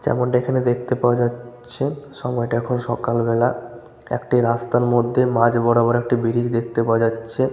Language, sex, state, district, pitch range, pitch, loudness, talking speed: Bengali, male, West Bengal, Malda, 115-125 Hz, 120 Hz, -20 LUFS, 145 wpm